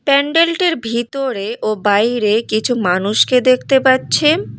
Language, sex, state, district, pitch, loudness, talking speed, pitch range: Bengali, female, West Bengal, Cooch Behar, 250 Hz, -15 LUFS, 105 wpm, 215-275 Hz